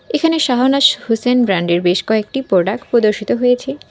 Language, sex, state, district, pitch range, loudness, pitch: Bengali, female, West Bengal, Alipurduar, 205-270 Hz, -15 LUFS, 240 Hz